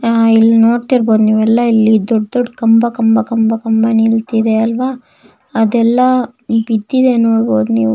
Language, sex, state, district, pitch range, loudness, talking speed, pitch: Kannada, female, Karnataka, Shimoga, 225-240 Hz, -12 LUFS, 130 wpm, 225 Hz